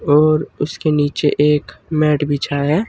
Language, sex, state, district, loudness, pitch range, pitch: Hindi, male, Uttar Pradesh, Saharanpur, -17 LUFS, 145-155 Hz, 150 Hz